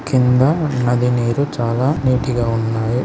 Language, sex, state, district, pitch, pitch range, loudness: Telugu, male, Andhra Pradesh, Srikakulam, 125 Hz, 120-130 Hz, -17 LUFS